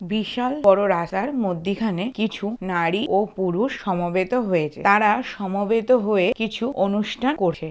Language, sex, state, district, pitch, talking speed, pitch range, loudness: Bengali, male, West Bengal, Jalpaiguri, 200 Hz, 125 wpm, 185-225 Hz, -22 LUFS